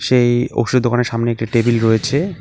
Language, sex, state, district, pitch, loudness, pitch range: Bengali, male, West Bengal, Alipurduar, 120 Hz, -16 LUFS, 115-125 Hz